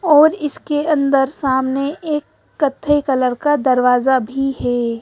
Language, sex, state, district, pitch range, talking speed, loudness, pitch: Hindi, female, Madhya Pradesh, Bhopal, 260-295 Hz, 130 wpm, -17 LUFS, 270 Hz